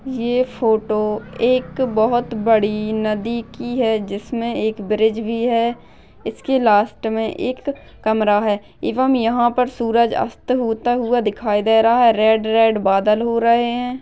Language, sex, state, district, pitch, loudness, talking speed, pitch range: Hindi, female, Maharashtra, Nagpur, 230 Hz, -18 LUFS, 155 wpm, 215-240 Hz